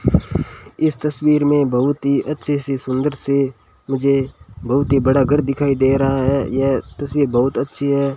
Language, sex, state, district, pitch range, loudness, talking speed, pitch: Hindi, male, Rajasthan, Bikaner, 135-145 Hz, -18 LUFS, 170 wpm, 140 Hz